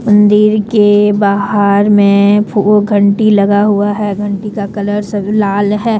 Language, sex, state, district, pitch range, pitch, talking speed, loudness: Hindi, female, Jharkhand, Deoghar, 200-210 Hz, 205 Hz, 150 wpm, -11 LUFS